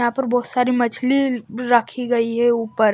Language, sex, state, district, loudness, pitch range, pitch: Hindi, male, Maharashtra, Washim, -19 LUFS, 235-250 Hz, 240 Hz